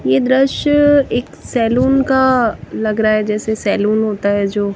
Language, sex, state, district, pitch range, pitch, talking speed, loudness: Hindi, female, Punjab, Kapurthala, 210-260 Hz, 220 Hz, 165 wpm, -15 LUFS